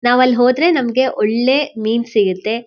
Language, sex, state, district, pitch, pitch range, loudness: Kannada, female, Karnataka, Shimoga, 245 Hz, 220-260 Hz, -15 LUFS